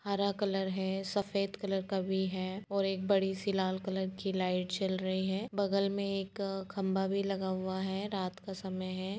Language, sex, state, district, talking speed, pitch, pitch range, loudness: Hindi, female, Uttar Pradesh, Etah, 195 wpm, 195 Hz, 190-195 Hz, -34 LUFS